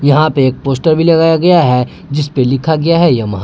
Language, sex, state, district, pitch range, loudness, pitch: Hindi, male, Jharkhand, Palamu, 130-165 Hz, -11 LUFS, 150 Hz